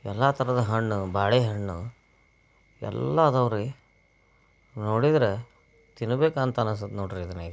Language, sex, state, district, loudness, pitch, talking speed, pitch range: Kannada, male, Karnataka, Belgaum, -26 LUFS, 115 Hz, 105 wpm, 100-125 Hz